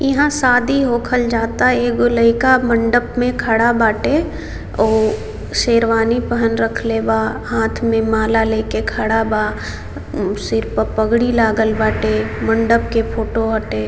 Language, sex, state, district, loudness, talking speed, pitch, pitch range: Maithili, female, Bihar, Samastipur, -16 LUFS, 130 wpm, 225 Hz, 220-240 Hz